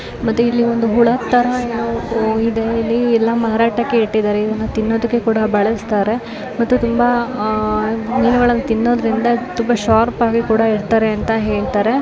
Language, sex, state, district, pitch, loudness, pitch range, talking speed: Kannada, female, Karnataka, Dakshina Kannada, 230 Hz, -16 LUFS, 220-235 Hz, 100 wpm